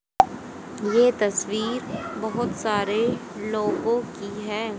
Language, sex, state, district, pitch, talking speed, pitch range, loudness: Hindi, female, Haryana, Charkhi Dadri, 215 Hz, 90 wpm, 210-235 Hz, -25 LUFS